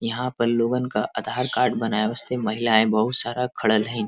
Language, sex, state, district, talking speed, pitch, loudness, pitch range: Bhojpuri, male, Uttar Pradesh, Varanasi, 190 wpm, 115 Hz, -22 LUFS, 110-125 Hz